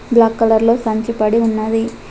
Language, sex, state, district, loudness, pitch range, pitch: Telugu, female, Telangana, Adilabad, -15 LUFS, 220-230 Hz, 225 Hz